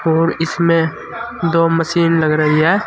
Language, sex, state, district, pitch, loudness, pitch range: Hindi, male, Uttar Pradesh, Saharanpur, 165 Hz, -15 LUFS, 160-170 Hz